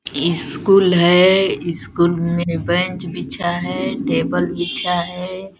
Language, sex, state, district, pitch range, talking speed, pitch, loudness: Hindi, female, Chhattisgarh, Balrampur, 170-185 Hz, 105 wpm, 175 Hz, -17 LUFS